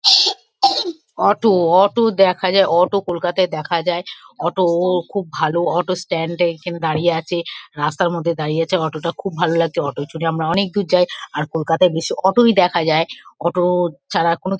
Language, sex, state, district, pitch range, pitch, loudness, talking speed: Bengali, female, West Bengal, Kolkata, 165-190 Hz, 175 Hz, -18 LUFS, 175 wpm